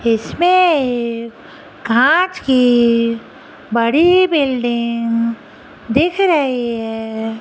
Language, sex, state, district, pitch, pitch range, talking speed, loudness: Hindi, female, Rajasthan, Jaipur, 240 Hz, 230-305 Hz, 65 wpm, -15 LUFS